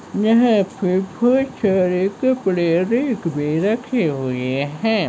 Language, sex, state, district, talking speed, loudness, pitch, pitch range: Hindi, male, Maharashtra, Solapur, 120 wpm, -19 LUFS, 195 Hz, 170-235 Hz